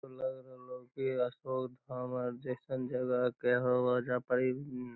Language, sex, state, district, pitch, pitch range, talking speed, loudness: Magahi, male, Bihar, Lakhisarai, 125 Hz, 125-130 Hz, 180 wpm, -35 LUFS